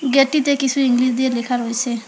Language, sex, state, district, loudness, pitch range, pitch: Bengali, female, West Bengal, Alipurduar, -18 LUFS, 245-275 Hz, 255 Hz